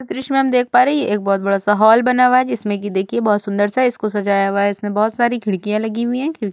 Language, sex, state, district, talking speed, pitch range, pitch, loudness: Hindi, female, Uttar Pradesh, Budaun, 320 wpm, 205-250 Hz, 215 Hz, -17 LUFS